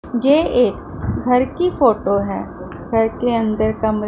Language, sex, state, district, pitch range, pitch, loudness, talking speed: Hindi, female, Punjab, Pathankot, 220-250 Hz, 230 Hz, -18 LUFS, 160 wpm